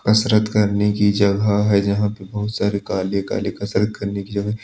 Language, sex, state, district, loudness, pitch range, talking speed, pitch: Hindi, male, Uttar Pradesh, Jalaun, -19 LUFS, 100-105 Hz, 195 wpm, 100 Hz